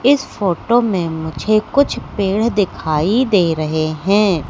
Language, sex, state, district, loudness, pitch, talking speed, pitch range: Hindi, female, Madhya Pradesh, Katni, -16 LUFS, 195 Hz, 135 wpm, 160-220 Hz